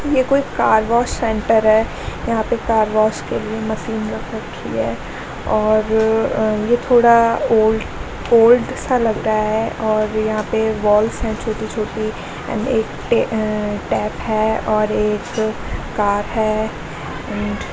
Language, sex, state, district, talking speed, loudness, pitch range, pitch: Hindi, female, Delhi, New Delhi, 140 wpm, -18 LUFS, 215-225 Hz, 220 Hz